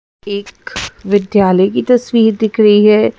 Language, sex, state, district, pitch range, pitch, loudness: Hindi, female, Madhya Pradesh, Bhopal, 200-220 Hz, 210 Hz, -12 LUFS